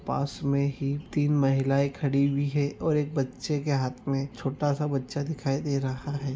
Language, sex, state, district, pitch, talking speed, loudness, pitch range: Hindi, male, Goa, North and South Goa, 140 Hz, 200 wpm, -28 LUFS, 135-145 Hz